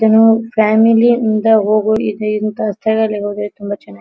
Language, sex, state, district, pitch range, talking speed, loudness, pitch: Kannada, female, Karnataka, Dharwad, 210-220 Hz, 150 wpm, -14 LUFS, 215 Hz